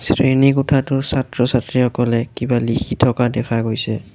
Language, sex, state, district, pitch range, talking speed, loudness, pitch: Assamese, male, Assam, Kamrup Metropolitan, 115-135 Hz, 115 wpm, -17 LUFS, 125 Hz